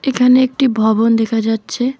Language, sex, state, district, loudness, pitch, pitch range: Bengali, female, West Bengal, Alipurduar, -14 LUFS, 230 Hz, 225-260 Hz